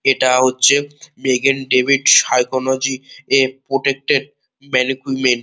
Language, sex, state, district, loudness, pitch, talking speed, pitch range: Bengali, male, West Bengal, Kolkata, -15 LUFS, 135 Hz, 75 wpm, 130-135 Hz